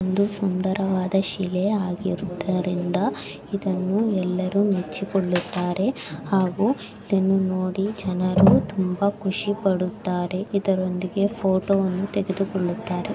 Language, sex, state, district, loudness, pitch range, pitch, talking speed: Kannada, female, Karnataka, Bellary, -23 LUFS, 185-200 Hz, 190 Hz, 80 wpm